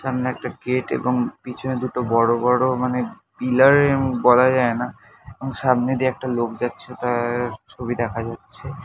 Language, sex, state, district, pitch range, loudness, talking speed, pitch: Bengali, male, West Bengal, North 24 Parganas, 120-130 Hz, -21 LUFS, 165 wpm, 125 Hz